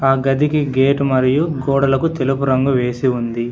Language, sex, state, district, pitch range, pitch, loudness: Telugu, male, Telangana, Hyderabad, 130-140 Hz, 135 Hz, -16 LUFS